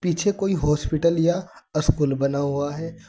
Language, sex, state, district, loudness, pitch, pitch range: Hindi, male, Uttar Pradesh, Saharanpur, -23 LUFS, 165 Hz, 145-175 Hz